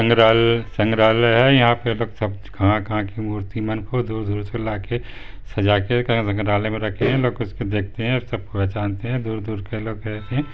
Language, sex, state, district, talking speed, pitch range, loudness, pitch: Hindi, male, Chhattisgarh, Bastar, 190 wpm, 105-115 Hz, -21 LUFS, 110 Hz